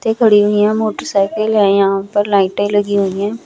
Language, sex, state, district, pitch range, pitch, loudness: Hindi, female, Chandigarh, Chandigarh, 200-215 Hz, 205 Hz, -14 LUFS